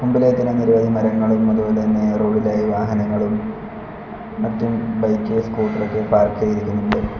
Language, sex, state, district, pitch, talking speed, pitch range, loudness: Malayalam, male, Kerala, Kollam, 110 Hz, 125 wpm, 105-120 Hz, -19 LUFS